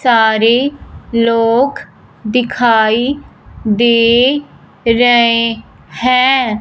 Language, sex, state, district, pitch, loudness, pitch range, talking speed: Hindi, female, Punjab, Fazilka, 235 Hz, -12 LUFS, 230-250 Hz, 55 wpm